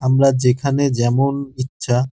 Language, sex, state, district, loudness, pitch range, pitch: Bengali, male, West Bengal, Dakshin Dinajpur, -18 LUFS, 125-140 Hz, 130 Hz